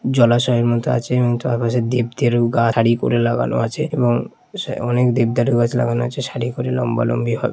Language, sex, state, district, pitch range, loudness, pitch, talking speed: Bengali, male, West Bengal, Jalpaiguri, 120-125 Hz, -18 LUFS, 120 Hz, 185 wpm